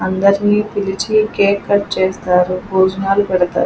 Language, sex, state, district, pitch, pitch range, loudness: Telugu, female, Andhra Pradesh, Krishna, 200 Hz, 190-205 Hz, -15 LUFS